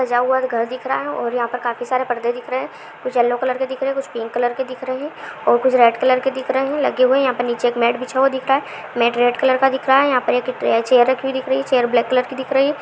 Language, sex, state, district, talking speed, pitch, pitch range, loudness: Hindi, female, Bihar, Supaul, 305 wpm, 255 Hz, 245-265 Hz, -18 LUFS